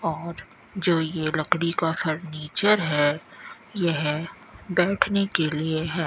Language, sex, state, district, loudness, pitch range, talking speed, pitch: Hindi, female, Rajasthan, Bikaner, -23 LUFS, 155-180 Hz, 120 wpm, 165 Hz